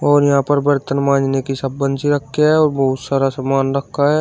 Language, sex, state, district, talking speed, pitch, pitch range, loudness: Hindi, male, Uttar Pradesh, Shamli, 230 wpm, 140 Hz, 135-145 Hz, -16 LUFS